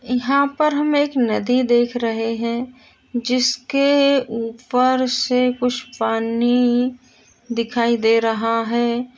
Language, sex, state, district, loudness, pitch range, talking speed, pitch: Hindi, female, Uttar Pradesh, Jalaun, -19 LUFS, 235-255 Hz, 110 wpm, 245 Hz